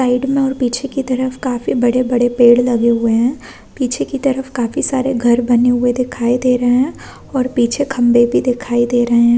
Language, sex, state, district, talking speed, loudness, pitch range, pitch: Hindi, female, Chhattisgarh, Korba, 205 wpm, -15 LUFS, 240-260 Hz, 245 Hz